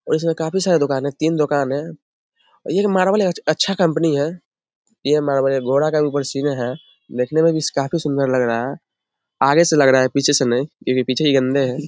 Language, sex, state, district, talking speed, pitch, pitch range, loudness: Hindi, male, Bihar, Samastipur, 230 wpm, 145 Hz, 135-160 Hz, -18 LUFS